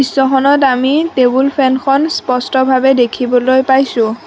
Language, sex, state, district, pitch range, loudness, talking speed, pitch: Assamese, female, Assam, Sonitpur, 250-275 Hz, -12 LUFS, 100 wpm, 265 Hz